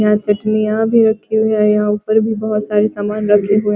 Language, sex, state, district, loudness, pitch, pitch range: Hindi, female, Bihar, Vaishali, -15 LUFS, 210 Hz, 210-220 Hz